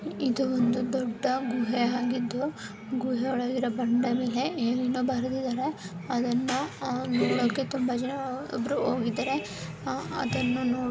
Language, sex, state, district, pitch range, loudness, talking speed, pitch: Kannada, female, Karnataka, Dakshina Kannada, 245-260 Hz, -29 LUFS, 120 wpm, 250 Hz